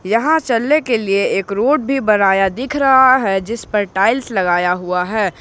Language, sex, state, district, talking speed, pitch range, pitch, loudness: Hindi, male, Jharkhand, Ranchi, 175 wpm, 195-260 Hz, 215 Hz, -15 LUFS